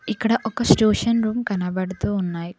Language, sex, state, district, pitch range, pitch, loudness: Telugu, female, Telangana, Mahabubabad, 185-230 Hz, 220 Hz, -21 LUFS